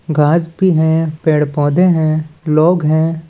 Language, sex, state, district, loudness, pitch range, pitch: Chhattisgarhi, male, Chhattisgarh, Balrampur, -14 LUFS, 155-165 Hz, 160 Hz